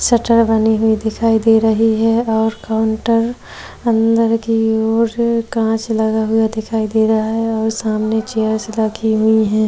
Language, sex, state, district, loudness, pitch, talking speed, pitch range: Hindi, female, Maharashtra, Chandrapur, -15 LUFS, 220 Hz, 165 wpm, 220-225 Hz